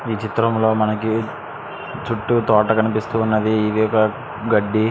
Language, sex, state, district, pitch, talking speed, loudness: Telugu, male, Andhra Pradesh, Srikakulam, 110 Hz, 120 wpm, -19 LUFS